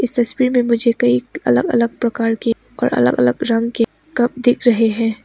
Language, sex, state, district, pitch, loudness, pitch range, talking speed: Hindi, female, Arunachal Pradesh, Papum Pare, 230 Hz, -17 LUFS, 225-240 Hz, 185 wpm